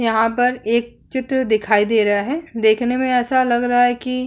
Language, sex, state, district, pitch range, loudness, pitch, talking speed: Hindi, female, Bihar, Vaishali, 225-255 Hz, -18 LUFS, 245 Hz, 225 wpm